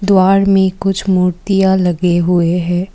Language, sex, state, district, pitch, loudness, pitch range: Hindi, female, Assam, Kamrup Metropolitan, 185 Hz, -13 LUFS, 180-195 Hz